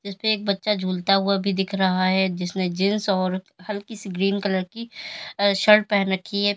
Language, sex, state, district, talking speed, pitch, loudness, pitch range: Hindi, female, Uttar Pradesh, Lalitpur, 200 wpm, 195 Hz, -22 LUFS, 190-210 Hz